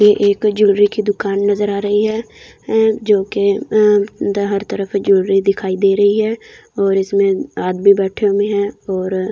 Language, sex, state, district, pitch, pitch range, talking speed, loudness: Hindi, female, Delhi, New Delhi, 200 Hz, 195-210 Hz, 180 wpm, -15 LUFS